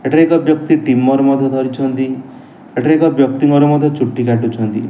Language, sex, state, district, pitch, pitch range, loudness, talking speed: Odia, male, Odisha, Nuapada, 135 Hz, 130-150 Hz, -13 LUFS, 160 wpm